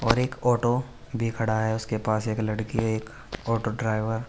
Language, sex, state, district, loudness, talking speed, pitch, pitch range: Hindi, male, Uttar Pradesh, Saharanpur, -27 LUFS, 195 wpm, 115 Hz, 110-120 Hz